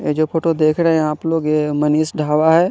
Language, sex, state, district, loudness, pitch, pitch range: Hindi, male, Chandigarh, Chandigarh, -17 LUFS, 155 Hz, 150-165 Hz